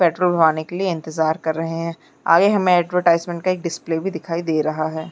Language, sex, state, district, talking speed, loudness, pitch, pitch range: Hindi, female, Uttarakhand, Uttarkashi, 200 wpm, -20 LUFS, 165 Hz, 160-180 Hz